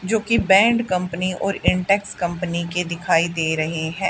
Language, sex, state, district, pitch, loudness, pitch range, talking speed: Hindi, female, Haryana, Charkhi Dadri, 180 Hz, -20 LUFS, 170-195 Hz, 160 wpm